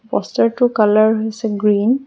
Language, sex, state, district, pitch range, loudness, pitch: Assamese, female, Assam, Hailakandi, 215-230 Hz, -16 LUFS, 220 Hz